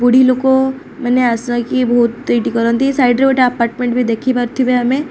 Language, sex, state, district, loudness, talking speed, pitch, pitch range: Odia, female, Odisha, Khordha, -14 LUFS, 175 wpm, 250 Hz, 240-260 Hz